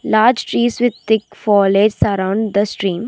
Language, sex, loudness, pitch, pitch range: English, female, -16 LUFS, 210 Hz, 200-220 Hz